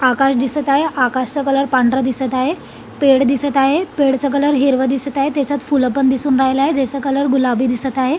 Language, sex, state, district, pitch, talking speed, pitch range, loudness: Marathi, female, Maharashtra, Solapur, 270 Hz, 200 wpm, 260-280 Hz, -16 LUFS